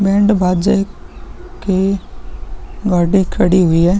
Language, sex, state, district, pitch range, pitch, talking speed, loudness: Hindi, male, Uttar Pradesh, Muzaffarnagar, 180-200 Hz, 190 Hz, 105 wpm, -15 LUFS